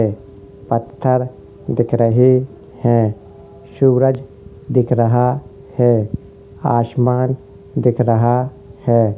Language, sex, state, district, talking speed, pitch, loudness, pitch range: Hindi, male, Uttar Pradesh, Hamirpur, 80 wpm, 120 Hz, -17 LUFS, 105-130 Hz